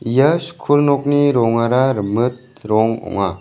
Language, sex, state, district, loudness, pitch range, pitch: Garo, male, Meghalaya, West Garo Hills, -16 LUFS, 115-145 Hz, 125 Hz